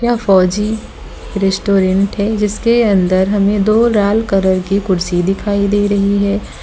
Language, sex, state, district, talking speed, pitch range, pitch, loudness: Hindi, female, Gujarat, Valsad, 135 wpm, 195-210 Hz, 200 Hz, -14 LUFS